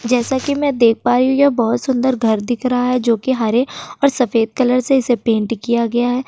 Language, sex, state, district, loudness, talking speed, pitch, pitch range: Hindi, female, Uttar Pradesh, Jyotiba Phule Nagar, -16 LUFS, 240 wpm, 250 Hz, 235-260 Hz